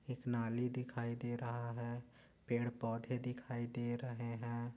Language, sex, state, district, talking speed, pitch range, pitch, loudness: Hindi, male, Goa, North and South Goa, 150 wpm, 120-125 Hz, 120 Hz, -42 LUFS